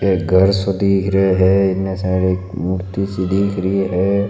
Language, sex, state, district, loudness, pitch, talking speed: Marwari, male, Rajasthan, Nagaur, -17 LUFS, 95 Hz, 195 wpm